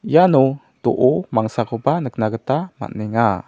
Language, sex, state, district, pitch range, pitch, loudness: Garo, male, Meghalaya, South Garo Hills, 110-140 Hz, 120 Hz, -19 LUFS